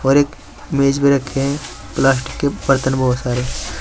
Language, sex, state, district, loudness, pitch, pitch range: Hindi, male, Uttar Pradesh, Saharanpur, -18 LUFS, 135 Hz, 130-140 Hz